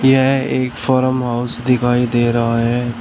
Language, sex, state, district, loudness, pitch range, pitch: Hindi, male, Uttar Pradesh, Shamli, -16 LUFS, 120-130 Hz, 120 Hz